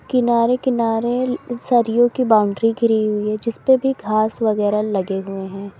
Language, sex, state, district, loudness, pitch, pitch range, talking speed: Hindi, female, Uttar Pradesh, Lalitpur, -18 LUFS, 225 Hz, 210-240 Hz, 155 wpm